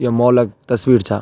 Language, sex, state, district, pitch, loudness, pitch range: Garhwali, male, Uttarakhand, Tehri Garhwal, 120 Hz, -15 LUFS, 110-125 Hz